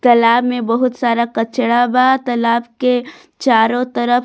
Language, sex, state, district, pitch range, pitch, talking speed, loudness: Bhojpuri, female, Bihar, Muzaffarpur, 235-250 Hz, 245 Hz, 155 wpm, -15 LUFS